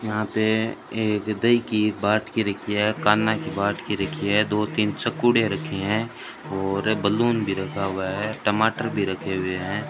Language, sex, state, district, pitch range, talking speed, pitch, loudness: Hindi, male, Rajasthan, Bikaner, 100-110 Hz, 190 wpm, 105 Hz, -23 LUFS